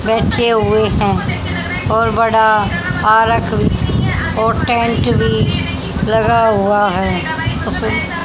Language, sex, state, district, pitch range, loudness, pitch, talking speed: Hindi, female, Haryana, Jhajjar, 210-225 Hz, -14 LUFS, 220 Hz, 95 wpm